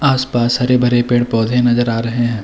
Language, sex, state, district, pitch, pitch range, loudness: Hindi, male, Uttarakhand, Tehri Garhwal, 120 Hz, 120-125 Hz, -15 LUFS